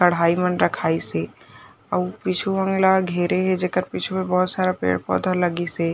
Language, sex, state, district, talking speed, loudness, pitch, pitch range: Chhattisgarhi, female, Chhattisgarh, Jashpur, 160 wpm, -21 LUFS, 180 Hz, 165-185 Hz